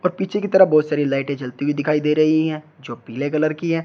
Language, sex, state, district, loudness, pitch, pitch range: Hindi, male, Uttar Pradesh, Shamli, -19 LUFS, 155 Hz, 145-165 Hz